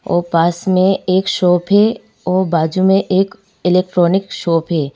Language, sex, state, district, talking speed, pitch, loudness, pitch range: Hindi, female, Madhya Pradesh, Bhopal, 160 wpm, 185 Hz, -15 LUFS, 175-190 Hz